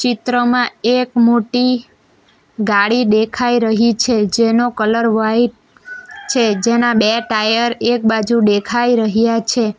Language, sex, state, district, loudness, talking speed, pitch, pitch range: Gujarati, female, Gujarat, Valsad, -14 LUFS, 115 wpm, 235 Hz, 220-245 Hz